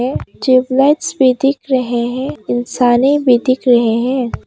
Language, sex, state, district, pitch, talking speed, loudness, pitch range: Hindi, female, Arunachal Pradesh, Papum Pare, 255 Hz, 135 wpm, -14 LUFS, 245-270 Hz